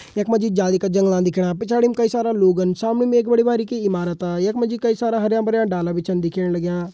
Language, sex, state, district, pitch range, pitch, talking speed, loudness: Hindi, male, Uttarakhand, Tehri Garhwal, 180-230 Hz, 205 Hz, 240 wpm, -19 LUFS